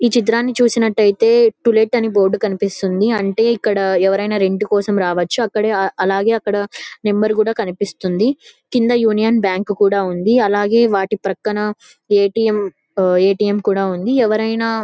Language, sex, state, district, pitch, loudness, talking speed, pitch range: Telugu, female, Andhra Pradesh, Anantapur, 210 Hz, -16 LUFS, 135 wpm, 195-225 Hz